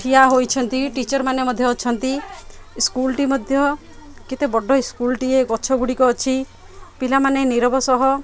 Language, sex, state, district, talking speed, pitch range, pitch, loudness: Odia, female, Odisha, Khordha, 145 wpm, 255-270 Hz, 260 Hz, -19 LUFS